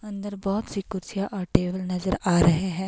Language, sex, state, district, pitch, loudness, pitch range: Hindi, female, Himachal Pradesh, Shimla, 190 Hz, -25 LUFS, 180-200 Hz